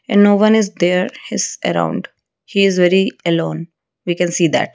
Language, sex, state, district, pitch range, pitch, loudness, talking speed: English, female, Odisha, Malkangiri, 170-205 Hz, 180 Hz, -16 LUFS, 190 wpm